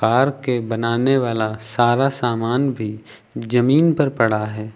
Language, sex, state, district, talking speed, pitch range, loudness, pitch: Hindi, male, Uttar Pradesh, Lucknow, 140 wpm, 110-135 Hz, -19 LUFS, 120 Hz